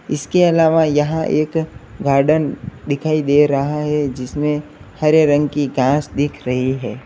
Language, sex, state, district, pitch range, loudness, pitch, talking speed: Hindi, male, Uttar Pradesh, Lalitpur, 140-155 Hz, -17 LUFS, 150 Hz, 145 wpm